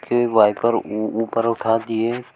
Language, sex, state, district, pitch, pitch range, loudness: Hindi, male, Uttar Pradesh, Shamli, 115 Hz, 110-115 Hz, -20 LUFS